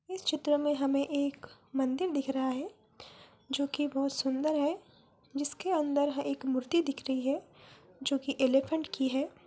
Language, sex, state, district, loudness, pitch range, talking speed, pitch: Hindi, female, Bihar, Jamui, -32 LUFS, 270-295 Hz, 160 wpm, 280 Hz